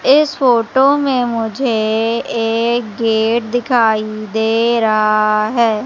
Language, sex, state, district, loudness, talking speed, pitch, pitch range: Hindi, female, Madhya Pradesh, Umaria, -15 LUFS, 100 wpm, 230 Hz, 220-240 Hz